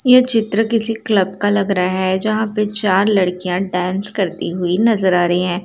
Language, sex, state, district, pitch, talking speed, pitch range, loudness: Hindi, female, Bihar, Darbhanga, 195 Hz, 200 wpm, 180-215 Hz, -16 LUFS